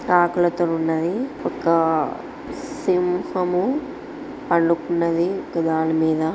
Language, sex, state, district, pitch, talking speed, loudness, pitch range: Telugu, female, Andhra Pradesh, Srikakulam, 175 Hz, 45 wpm, -21 LUFS, 165-275 Hz